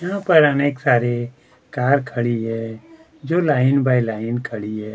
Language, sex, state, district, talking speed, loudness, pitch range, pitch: Hindi, male, Chhattisgarh, Kabirdham, 155 wpm, -19 LUFS, 115-145 Hz, 125 Hz